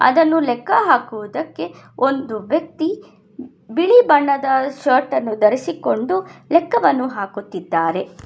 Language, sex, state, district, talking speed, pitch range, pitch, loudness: Kannada, female, Karnataka, Bangalore, 85 wpm, 220-320 Hz, 265 Hz, -18 LUFS